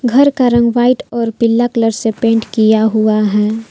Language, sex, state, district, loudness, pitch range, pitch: Hindi, female, Jharkhand, Palamu, -13 LUFS, 220-240 Hz, 230 Hz